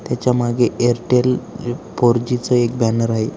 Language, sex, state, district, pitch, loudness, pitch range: Marathi, male, Maharashtra, Aurangabad, 120 Hz, -18 LUFS, 120-125 Hz